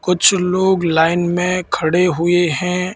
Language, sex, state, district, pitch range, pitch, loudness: Hindi, male, Madhya Pradesh, Katni, 175-180 Hz, 180 Hz, -15 LUFS